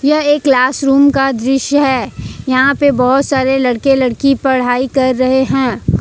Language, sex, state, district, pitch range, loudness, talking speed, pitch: Hindi, female, Jharkhand, Ranchi, 255-275 Hz, -12 LUFS, 170 wpm, 265 Hz